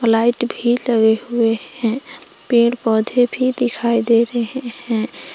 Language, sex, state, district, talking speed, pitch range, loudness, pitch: Hindi, female, Jharkhand, Palamu, 135 wpm, 225-245 Hz, -18 LUFS, 235 Hz